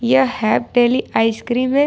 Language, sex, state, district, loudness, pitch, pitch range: Hindi, female, Jharkhand, Ranchi, -17 LUFS, 245 Hz, 230-260 Hz